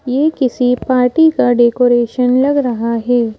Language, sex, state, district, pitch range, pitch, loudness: Hindi, female, Madhya Pradesh, Bhopal, 240-260 Hz, 250 Hz, -13 LUFS